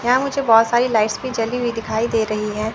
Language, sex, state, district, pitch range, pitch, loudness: Hindi, female, Chandigarh, Chandigarh, 220-240 Hz, 225 Hz, -18 LUFS